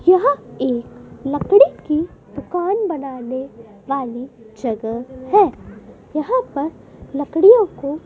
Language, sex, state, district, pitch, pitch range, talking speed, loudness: Hindi, female, Madhya Pradesh, Dhar, 280 Hz, 250-345 Hz, 95 wpm, -18 LUFS